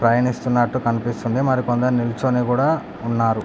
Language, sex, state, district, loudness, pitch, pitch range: Telugu, male, Andhra Pradesh, Anantapur, -20 LUFS, 120 Hz, 115-125 Hz